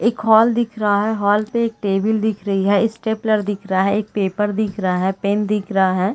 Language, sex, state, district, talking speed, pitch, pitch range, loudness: Hindi, female, Chhattisgarh, Raigarh, 245 wpm, 210 Hz, 200-220 Hz, -18 LUFS